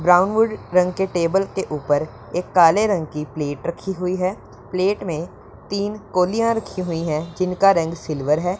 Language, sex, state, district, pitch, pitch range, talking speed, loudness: Hindi, male, Punjab, Pathankot, 180 Hz, 155-195 Hz, 175 wpm, -21 LUFS